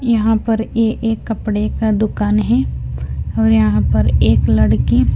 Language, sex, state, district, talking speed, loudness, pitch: Hindi, female, Punjab, Fazilka, 150 wpm, -16 LUFS, 210 Hz